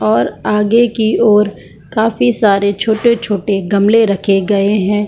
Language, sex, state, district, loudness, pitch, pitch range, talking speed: Hindi, female, Bihar, Jamui, -13 LUFS, 210 Hz, 200-225 Hz, 130 wpm